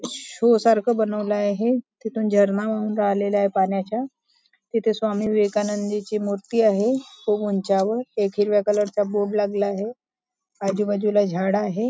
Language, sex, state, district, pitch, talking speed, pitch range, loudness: Marathi, female, Maharashtra, Nagpur, 210 Hz, 135 wpm, 205-225 Hz, -22 LUFS